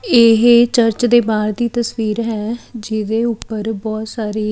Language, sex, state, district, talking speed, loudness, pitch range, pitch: Punjabi, female, Chandigarh, Chandigarh, 160 wpm, -16 LUFS, 215-235 Hz, 225 Hz